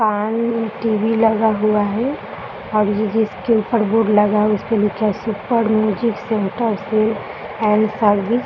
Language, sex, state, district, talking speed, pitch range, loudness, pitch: Hindi, female, Bihar, Jahanabad, 140 wpm, 210-225 Hz, -18 LUFS, 220 Hz